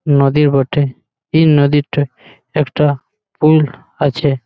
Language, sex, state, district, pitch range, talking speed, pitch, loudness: Bengali, male, West Bengal, Malda, 140-150 Hz, 95 wpm, 145 Hz, -14 LUFS